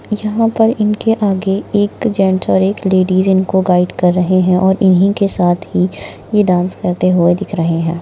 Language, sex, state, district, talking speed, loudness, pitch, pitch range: Hindi, female, Maharashtra, Nagpur, 195 wpm, -14 LUFS, 190 Hz, 180-205 Hz